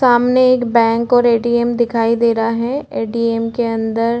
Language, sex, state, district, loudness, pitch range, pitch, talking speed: Hindi, female, Chhattisgarh, Korba, -15 LUFS, 230-240 Hz, 235 Hz, 230 wpm